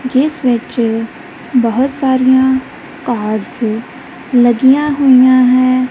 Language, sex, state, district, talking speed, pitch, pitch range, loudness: Punjabi, female, Punjab, Kapurthala, 80 wpm, 255 Hz, 240-265 Hz, -12 LUFS